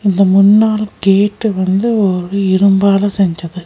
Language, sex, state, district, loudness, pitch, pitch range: Tamil, female, Tamil Nadu, Nilgiris, -12 LUFS, 195 Hz, 190-205 Hz